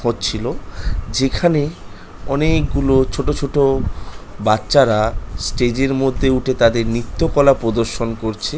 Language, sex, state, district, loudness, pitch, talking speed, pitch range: Bengali, male, West Bengal, North 24 Parganas, -18 LUFS, 120 Hz, 110 wpm, 110-140 Hz